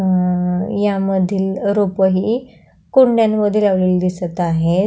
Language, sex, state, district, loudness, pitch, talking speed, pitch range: Marathi, female, Maharashtra, Pune, -16 LUFS, 190 Hz, 110 wpm, 180-205 Hz